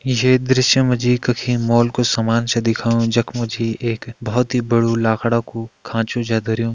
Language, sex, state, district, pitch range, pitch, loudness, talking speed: Hindi, male, Uttarakhand, Tehri Garhwal, 115-125 Hz, 115 Hz, -18 LUFS, 195 wpm